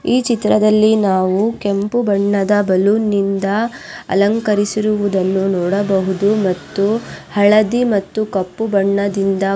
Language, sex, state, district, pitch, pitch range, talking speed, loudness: Kannada, female, Karnataka, Raichur, 200 Hz, 195-215 Hz, 80 wpm, -16 LUFS